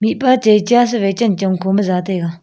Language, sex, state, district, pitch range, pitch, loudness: Wancho, female, Arunachal Pradesh, Longding, 190-230 Hz, 200 Hz, -15 LUFS